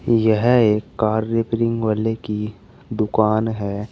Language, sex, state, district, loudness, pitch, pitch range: Hindi, male, Uttar Pradesh, Saharanpur, -19 LUFS, 110 Hz, 105-115 Hz